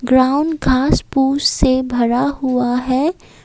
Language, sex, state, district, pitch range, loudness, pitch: Hindi, female, Assam, Kamrup Metropolitan, 250-275 Hz, -16 LUFS, 260 Hz